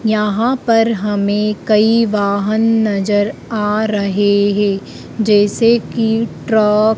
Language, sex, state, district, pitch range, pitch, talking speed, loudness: Hindi, female, Madhya Pradesh, Dhar, 205-225 Hz, 210 Hz, 110 wpm, -15 LUFS